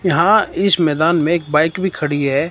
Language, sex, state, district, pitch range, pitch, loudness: Hindi, male, Himachal Pradesh, Shimla, 150-175 Hz, 165 Hz, -15 LUFS